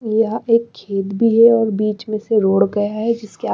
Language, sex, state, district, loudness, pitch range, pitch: Hindi, female, Bihar, Katihar, -17 LUFS, 205-230 Hz, 215 Hz